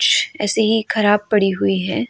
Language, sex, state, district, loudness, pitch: Hindi, female, Goa, North and South Goa, -17 LUFS, 205 Hz